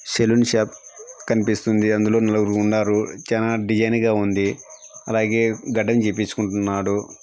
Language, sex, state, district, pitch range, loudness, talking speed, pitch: Telugu, male, Andhra Pradesh, Anantapur, 105-115 Hz, -20 LUFS, 110 wpm, 110 Hz